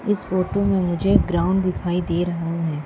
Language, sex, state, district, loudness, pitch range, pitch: Hindi, female, Madhya Pradesh, Umaria, -21 LUFS, 170-190 Hz, 180 Hz